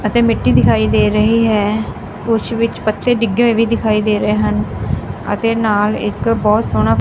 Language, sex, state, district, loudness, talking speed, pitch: Punjabi, female, Punjab, Fazilka, -15 LUFS, 180 wpm, 210 Hz